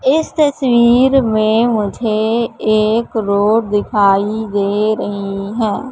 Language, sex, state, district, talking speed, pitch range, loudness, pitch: Hindi, female, Madhya Pradesh, Katni, 100 wpm, 205-235 Hz, -14 LUFS, 220 Hz